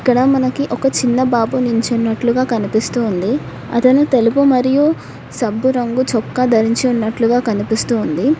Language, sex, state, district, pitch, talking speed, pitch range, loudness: Telugu, female, Telangana, Hyderabad, 245 Hz, 130 wpm, 230-260 Hz, -15 LUFS